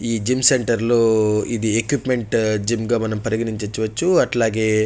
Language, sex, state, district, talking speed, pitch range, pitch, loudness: Telugu, male, Andhra Pradesh, Chittoor, 150 wpm, 110-120 Hz, 115 Hz, -19 LUFS